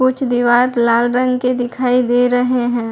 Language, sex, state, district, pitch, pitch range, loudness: Hindi, female, Bihar, Madhepura, 245 Hz, 240-250 Hz, -15 LUFS